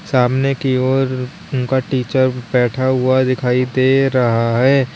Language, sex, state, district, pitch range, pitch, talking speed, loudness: Hindi, male, Uttar Pradesh, Lalitpur, 125-135 Hz, 130 Hz, 135 wpm, -16 LUFS